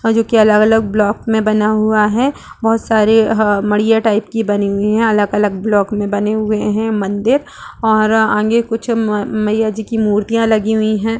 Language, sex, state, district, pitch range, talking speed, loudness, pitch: Hindi, female, Uttar Pradesh, Etah, 210-225 Hz, 180 wpm, -14 LUFS, 215 Hz